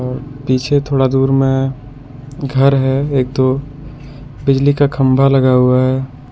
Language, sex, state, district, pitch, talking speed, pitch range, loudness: Hindi, male, Jharkhand, Deoghar, 135 Hz, 135 wpm, 130-140 Hz, -14 LUFS